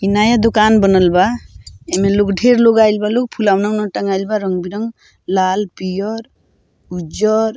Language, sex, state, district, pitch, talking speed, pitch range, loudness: Bhojpuri, female, Bihar, Muzaffarpur, 205 Hz, 160 wpm, 190-220 Hz, -15 LUFS